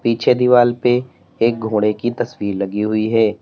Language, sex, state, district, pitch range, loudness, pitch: Hindi, male, Uttar Pradesh, Lalitpur, 105-120 Hz, -17 LUFS, 115 Hz